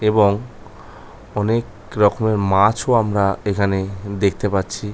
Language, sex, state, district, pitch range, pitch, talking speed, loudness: Bengali, male, West Bengal, North 24 Parganas, 100-110 Hz, 105 Hz, 110 wpm, -19 LUFS